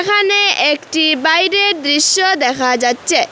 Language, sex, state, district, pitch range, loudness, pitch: Bengali, female, Assam, Hailakandi, 290-390 Hz, -12 LUFS, 320 Hz